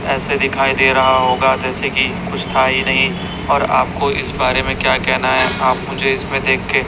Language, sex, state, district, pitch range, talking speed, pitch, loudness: Hindi, male, Chhattisgarh, Raipur, 130-135 Hz, 210 wpm, 130 Hz, -15 LUFS